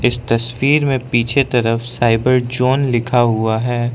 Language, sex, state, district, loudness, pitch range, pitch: Hindi, male, Arunachal Pradesh, Lower Dibang Valley, -16 LUFS, 115-130 Hz, 120 Hz